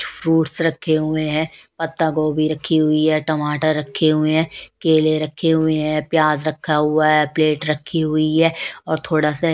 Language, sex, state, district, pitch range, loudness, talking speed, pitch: Hindi, female, Bihar, West Champaran, 155-160 Hz, -18 LUFS, 175 wpm, 155 Hz